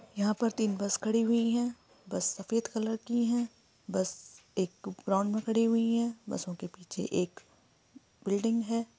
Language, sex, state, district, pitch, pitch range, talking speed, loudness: Hindi, female, Jharkhand, Sahebganj, 225 Hz, 200-230 Hz, 165 wpm, -32 LUFS